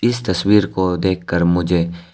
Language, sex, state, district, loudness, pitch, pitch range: Hindi, male, Arunachal Pradesh, Lower Dibang Valley, -17 LUFS, 90 Hz, 85-95 Hz